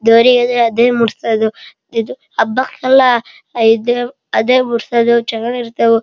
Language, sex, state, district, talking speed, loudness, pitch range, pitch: Kannada, male, Karnataka, Shimoga, 90 wpm, -14 LUFS, 230-245 Hz, 235 Hz